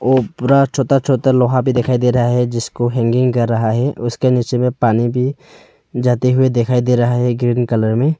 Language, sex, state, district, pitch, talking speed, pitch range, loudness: Hindi, male, Arunachal Pradesh, Longding, 125 Hz, 210 wpm, 120-130 Hz, -15 LUFS